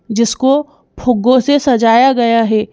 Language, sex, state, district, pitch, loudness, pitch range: Hindi, female, Madhya Pradesh, Bhopal, 245 Hz, -12 LUFS, 230-265 Hz